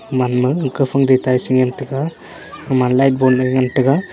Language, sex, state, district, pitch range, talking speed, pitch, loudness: Wancho, male, Arunachal Pradesh, Longding, 125-135 Hz, 130 wpm, 130 Hz, -16 LUFS